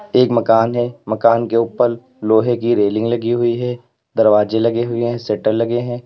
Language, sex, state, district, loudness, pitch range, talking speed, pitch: Hindi, male, Uttar Pradesh, Lalitpur, -16 LUFS, 115-120 Hz, 190 wpm, 120 Hz